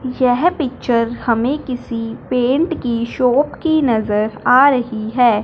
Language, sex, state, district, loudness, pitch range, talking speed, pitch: Hindi, male, Punjab, Fazilka, -16 LUFS, 230-270 Hz, 130 wpm, 245 Hz